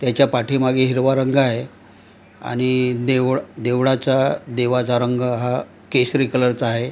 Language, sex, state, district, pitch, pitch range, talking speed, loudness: Marathi, male, Maharashtra, Gondia, 125 Hz, 120-130 Hz, 130 wpm, -19 LUFS